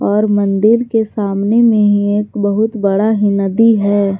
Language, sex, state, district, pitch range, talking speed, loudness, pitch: Hindi, female, Jharkhand, Garhwa, 200-220 Hz, 170 wpm, -13 LUFS, 205 Hz